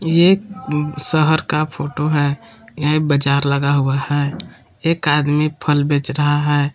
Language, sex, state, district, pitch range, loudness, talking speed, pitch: Hindi, male, Jharkhand, Palamu, 145-155 Hz, -17 LUFS, 140 wpm, 150 Hz